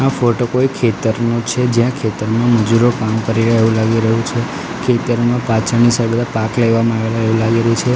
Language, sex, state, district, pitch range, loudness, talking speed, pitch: Gujarati, male, Gujarat, Gandhinagar, 115-120 Hz, -15 LUFS, 195 wpm, 115 Hz